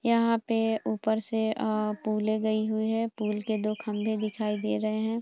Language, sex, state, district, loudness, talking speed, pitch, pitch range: Hindi, female, Bihar, Bhagalpur, -29 LUFS, 195 wpm, 220 Hz, 215-220 Hz